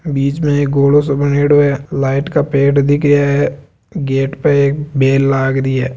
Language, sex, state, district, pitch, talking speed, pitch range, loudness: Marwari, male, Rajasthan, Nagaur, 140 Hz, 200 wpm, 135-145 Hz, -13 LUFS